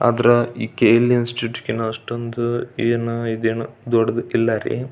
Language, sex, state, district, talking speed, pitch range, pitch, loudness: Kannada, male, Karnataka, Belgaum, 120 wpm, 115-120 Hz, 115 Hz, -20 LUFS